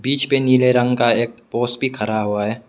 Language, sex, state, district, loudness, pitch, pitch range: Hindi, male, Meghalaya, West Garo Hills, -18 LUFS, 120 Hz, 115-130 Hz